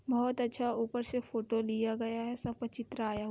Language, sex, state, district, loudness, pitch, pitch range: Hindi, female, Chhattisgarh, Bilaspur, -35 LUFS, 235 Hz, 225-245 Hz